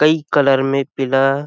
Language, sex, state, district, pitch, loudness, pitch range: Chhattisgarhi, male, Chhattisgarh, Sarguja, 140 Hz, -16 LUFS, 135-145 Hz